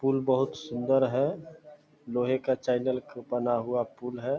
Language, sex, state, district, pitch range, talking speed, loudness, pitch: Hindi, male, Bihar, Purnia, 125-140 Hz, 165 wpm, -29 LUFS, 130 Hz